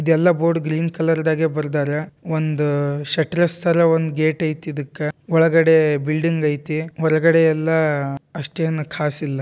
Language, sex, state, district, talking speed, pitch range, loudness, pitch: Kannada, male, Karnataka, Dharwad, 135 wpm, 150-165 Hz, -19 LUFS, 155 Hz